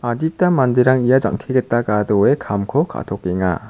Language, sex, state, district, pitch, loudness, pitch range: Garo, male, Meghalaya, South Garo Hills, 120 Hz, -17 LUFS, 100-130 Hz